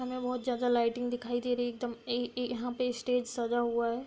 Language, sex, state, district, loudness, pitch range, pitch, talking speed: Hindi, female, Bihar, Darbhanga, -33 LUFS, 240-250 Hz, 245 Hz, 235 wpm